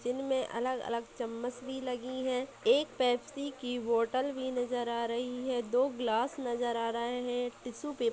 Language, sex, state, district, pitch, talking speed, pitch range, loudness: Hindi, female, Bihar, Purnia, 245 Hz, 175 wpm, 240-260 Hz, -34 LUFS